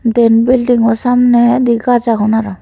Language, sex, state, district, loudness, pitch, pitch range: Chakma, female, Tripura, Unakoti, -11 LUFS, 235 Hz, 225-245 Hz